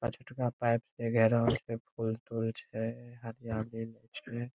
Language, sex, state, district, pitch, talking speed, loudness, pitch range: Maithili, male, Bihar, Saharsa, 115 Hz, 130 wpm, -34 LUFS, 115-120 Hz